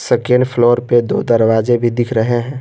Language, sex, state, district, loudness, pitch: Hindi, male, Jharkhand, Garhwa, -14 LUFS, 120 Hz